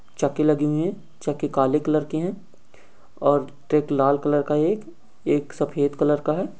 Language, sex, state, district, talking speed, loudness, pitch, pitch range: Hindi, male, Jharkhand, Sahebganj, 190 wpm, -23 LUFS, 150 Hz, 145-155 Hz